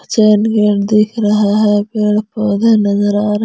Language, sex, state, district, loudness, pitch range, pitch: Hindi, female, Jharkhand, Garhwa, -13 LUFS, 205-215 Hz, 210 Hz